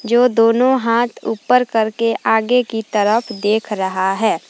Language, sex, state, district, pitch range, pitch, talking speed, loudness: Hindi, female, Jharkhand, Palamu, 215-240 Hz, 225 Hz, 145 wpm, -16 LUFS